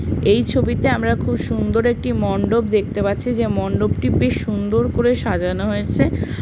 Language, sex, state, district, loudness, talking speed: Bengali, female, West Bengal, Paschim Medinipur, -19 LUFS, 150 wpm